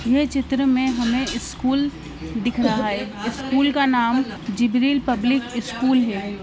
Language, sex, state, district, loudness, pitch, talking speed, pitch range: Hindi, female, Bihar, Muzaffarpur, -21 LUFS, 250 Hz, 140 wpm, 235-270 Hz